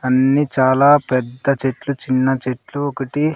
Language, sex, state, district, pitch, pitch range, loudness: Telugu, male, Andhra Pradesh, Sri Satya Sai, 135 Hz, 130-145 Hz, -17 LUFS